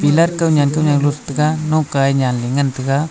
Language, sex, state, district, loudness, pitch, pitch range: Wancho, male, Arunachal Pradesh, Longding, -16 LUFS, 145 Hz, 135-155 Hz